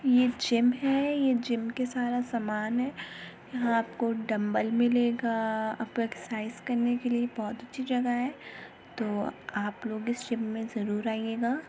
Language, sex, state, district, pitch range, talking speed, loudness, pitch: Hindi, female, Uttar Pradesh, Muzaffarnagar, 225-245 Hz, 160 wpm, -30 LUFS, 235 Hz